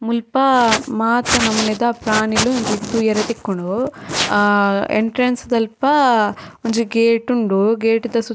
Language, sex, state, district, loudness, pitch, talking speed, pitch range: Tulu, female, Karnataka, Dakshina Kannada, -17 LUFS, 230 Hz, 100 wpm, 215-240 Hz